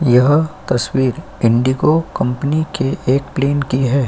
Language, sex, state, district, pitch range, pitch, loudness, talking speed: Hindi, male, Uttar Pradesh, Jyotiba Phule Nagar, 125-150 Hz, 135 Hz, -16 LUFS, 130 wpm